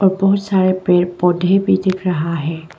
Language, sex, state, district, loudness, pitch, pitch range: Hindi, female, Arunachal Pradesh, Papum Pare, -16 LUFS, 185 Hz, 175-190 Hz